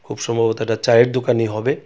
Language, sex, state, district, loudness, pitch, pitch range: Bengali, male, Tripura, West Tripura, -18 LUFS, 115 Hz, 110-120 Hz